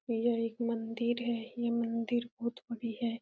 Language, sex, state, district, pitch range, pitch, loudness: Hindi, female, Uttar Pradesh, Etah, 230-240 Hz, 235 Hz, -34 LUFS